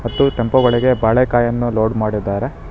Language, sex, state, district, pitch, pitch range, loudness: Kannada, male, Karnataka, Bangalore, 120 Hz, 110-125 Hz, -16 LUFS